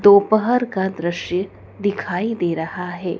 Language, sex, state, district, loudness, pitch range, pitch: Hindi, female, Madhya Pradesh, Dhar, -20 LUFS, 175-205 Hz, 190 Hz